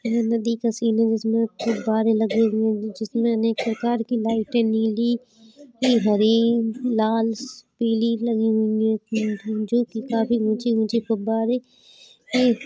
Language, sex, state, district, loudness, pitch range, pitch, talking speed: Hindi, female, Uttar Pradesh, Jalaun, -22 LUFS, 220-235 Hz, 225 Hz, 160 wpm